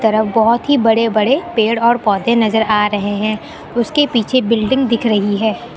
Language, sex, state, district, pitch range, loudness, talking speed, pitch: Hindi, female, Uttar Pradesh, Lucknow, 215-235 Hz, -14 LUFS, 185 wpm, 225 Hz